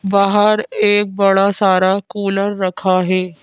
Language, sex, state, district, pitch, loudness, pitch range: Hindi, female, Madhya Pradesh, Bhopal, 195 Hz, -15 LUFS, 185-205 Hz